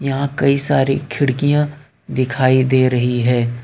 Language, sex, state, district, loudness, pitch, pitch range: Hindi, male, Jharkhand, Ranchi, -17 LUFS, 135 Hz, 130-140 Hz